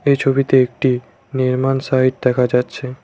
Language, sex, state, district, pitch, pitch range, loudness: Bengali, male, West Bengal, Cooch Behar, 130 Hz, 125-135 Hz, -17 LUFS